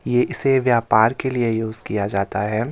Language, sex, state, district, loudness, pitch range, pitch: Hindi, male, Himachal Pradesh, Shimla, -20 LUFS, 105-125 Hz, 115 Hz